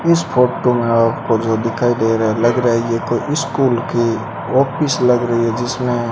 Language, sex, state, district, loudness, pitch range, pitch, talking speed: Hindi, male, Rajasthan, Bikaner, -16 LUFS, 115-125 Hz, 120 Hz, 215 wpm